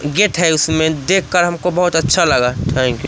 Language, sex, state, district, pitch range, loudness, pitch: Hindi, male, Madhya Pradesh, Umaria, 145-175 Hz, -14 LUFS, 160 Hz